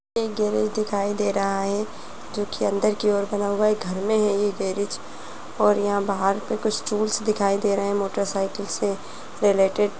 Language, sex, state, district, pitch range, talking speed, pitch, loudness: Kumaoni, female, Uttarakhand, Uttarkashi, 200-210 Hz, 185 wpm, 205 Hz, -23 LUFS